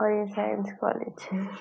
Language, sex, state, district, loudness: Hindi, female, Maharashtra, Nagpur, -30 LUFS